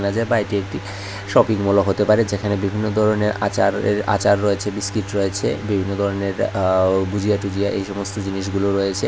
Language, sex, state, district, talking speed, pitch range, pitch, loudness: Bengali, male, Tripura, West Tripura, 165 wpm, 100-105 Hz, 100 Hz, -20 LUFS